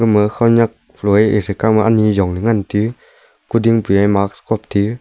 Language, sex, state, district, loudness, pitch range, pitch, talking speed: Wancho, male, Arunachal Pradesh, Longding, -15 LUFS, 100-115 Hz, 105 Hz, 180 wpm